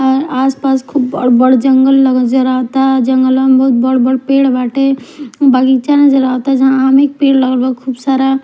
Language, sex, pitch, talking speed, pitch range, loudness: Bhojpuri, female, 265 Hz, 190 wpm, 255-270 Hz, -11 LUFS